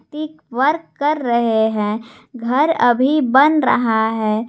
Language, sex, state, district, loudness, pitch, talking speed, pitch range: Hindi, female, Jharkhand, Garhwa, -16 LUFS, 245 Hz, 120 wpm, 225-295 Hz